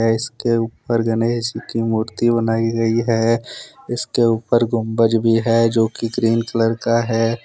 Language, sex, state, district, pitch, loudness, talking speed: Hindi, male, Jharkhand, Deoghar, 115 Hz, -18 LUFS, 160 wpm